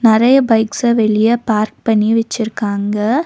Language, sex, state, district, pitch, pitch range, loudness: Tamil, female, Tamil Nadu, Nilgiris, 225 Hz, 215-235 Hz, -14 LUFS